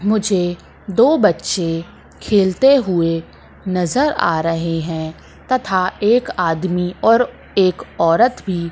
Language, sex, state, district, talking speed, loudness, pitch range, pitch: Hindi, female, Madhya Pradesh, Katni, 110 wpm, -17 LUFS, 165-215 Hz, 185 Hz